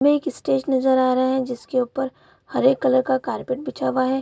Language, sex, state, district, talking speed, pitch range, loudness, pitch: Hindi, female, Bihar, Bhagalpur, 215 wpm, 255-270 Hz, -21 LUFS, 260 Hz